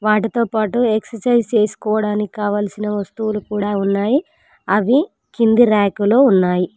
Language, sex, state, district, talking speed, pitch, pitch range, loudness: Telugu, female, Telangana, Mahabubabad, 115 wpm, 215 Hz, 205-235 Hz, -17 LUFS